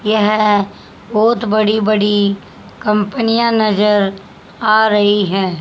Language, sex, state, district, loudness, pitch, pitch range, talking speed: Hindi, female, Haryana, Charkhi Dadri, -14 LUFS, 210 Hz, 205-220 Hz, 95 wpm